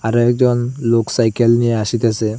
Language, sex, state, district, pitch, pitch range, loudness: Bengali, male, Assam, Hailakandi, 115 Hz, 115-120 Hz, -16 LUFS